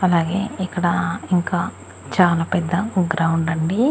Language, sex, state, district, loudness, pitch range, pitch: Telugu, female, Andhra Pradesh, Annamaya, -20 LUFS, 165-185 Hz, 175 Hz